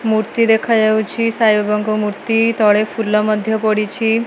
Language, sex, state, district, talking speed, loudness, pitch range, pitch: Odia, female, Odisha, Malkangiri, 125 wpm, -15 LUFS, 215-225 Hz, 220 Hz